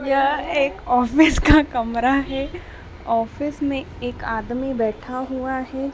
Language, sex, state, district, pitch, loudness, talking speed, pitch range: Hindi, female, Madhya Pradesh, Dhar, 265 Hz, -21 LUFS, 130 wpm, 245-280 Hz